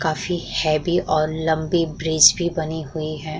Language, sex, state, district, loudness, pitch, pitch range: Hindi, female, Bihar, Vaishali, -20 LUFS, 160 Hz, 155-165 Hz